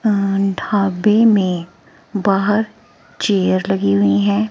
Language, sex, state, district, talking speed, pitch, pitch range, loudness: Hindi, female, Himachal Pradesh, Shimla, 95 wpm, 195 Hz, 180-210 Hz, -16 LUFS